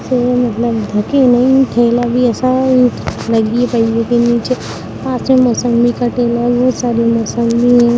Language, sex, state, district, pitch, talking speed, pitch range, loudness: Hindi, female, Bihar, Gaya, 240 Hz, 115 wpm, 235-250 Hz, -13 LUFS